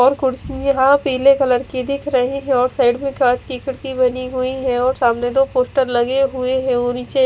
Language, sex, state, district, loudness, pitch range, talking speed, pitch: Hindi, female, Odisha, Khordha, -17 LUFS, 250-270 Hz, 230 wpm, 255 Hz